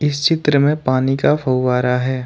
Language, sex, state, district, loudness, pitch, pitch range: Hindi, male, Jharkhand, Ranchi, -16 LUFS, 135 Hz, 130-150 Hz